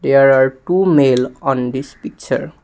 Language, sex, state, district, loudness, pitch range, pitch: English, male, Assam, Kamrup Metropolitan, -15 LUFS, 130-140 Hz, 135 Hz